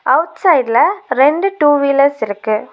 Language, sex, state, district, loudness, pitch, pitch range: Tamil, female, Tamil Nadu, Nilgiris, -13 LUFS, 285 Hz, 255-345 Hz